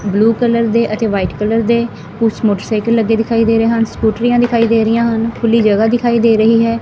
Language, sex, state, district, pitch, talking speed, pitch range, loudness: Punjabi, female, Punjab, Fazilka, 225 Hz, 220 wpm, 220-230 Hz, -13 LUFS